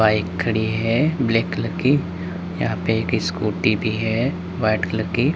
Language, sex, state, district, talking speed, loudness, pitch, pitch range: Hindi, male, Uttar Pradesh, Lalitpur, 170 wpm, -21 LUFS, 110 Hz, 90-120 Hz